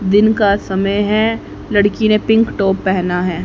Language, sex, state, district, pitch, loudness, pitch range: Hindi, female, Haryana, Jhajjar, 205 Hz, -15 LUFS, 190-215 Hz